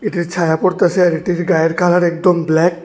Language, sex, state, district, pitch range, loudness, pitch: Bengali, male, Tripura, West Tripura, 170-180 Hz, -15 LUFS, 175 Hz